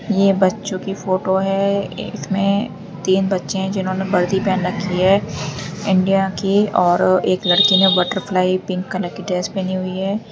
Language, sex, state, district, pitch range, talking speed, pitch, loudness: Hindi, female, Uttar Pradesh, Lalitpur, 185-195 Hz, 165 wpm, 190 Hz, -18 LUFS